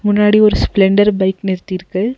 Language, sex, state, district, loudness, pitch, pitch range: Tamil, female, Tamil Nadu, Nilgiris, -13 LUFS, 200 Hz, 190-210 Hz